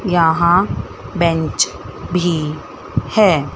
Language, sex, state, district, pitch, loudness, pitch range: Hindi, female, Chandigarh, Chandigarh, 170 Hz, -17 LUFS, 155-180 Hz